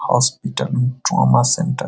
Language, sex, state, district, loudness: Hindi, male, Bihar, Muzaffarpur, -17 LUFS